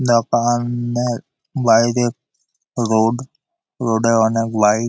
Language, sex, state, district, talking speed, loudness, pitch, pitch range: Bengali, male, West Bengal, Malda, 100 wpm, -18 LUFS, 120 Hz, 115-125 Hz